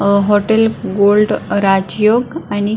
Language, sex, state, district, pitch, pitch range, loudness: Marathi, female, Maharashtra, Solapur, 205 Hz, 200-220 Hz, -14 LUFS